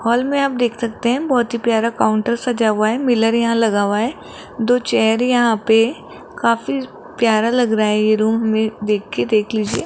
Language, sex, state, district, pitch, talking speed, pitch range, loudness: Hindi, female, Rajasthan, Jaipur, 230 Hz, 215 wpm, 215-240 Hz, -17 LUFS